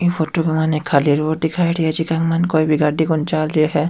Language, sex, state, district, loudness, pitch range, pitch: Rajasthani, male, Rajasthan, Churu, -18 LUFS, 155-165 Hz, 160 Hz